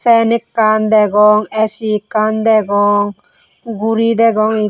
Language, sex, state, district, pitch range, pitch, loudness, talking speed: Chakma, female, Tripura, West Tripura, 210-225 Hz, 215 Hz, -13 LUFS, 140 wpm